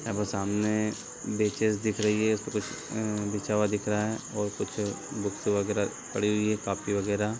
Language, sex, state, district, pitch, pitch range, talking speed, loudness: Hindi, male, Bihar, East Champaran, 105 Hz, 105-110 Hz, 195 wpm, -29 LUFS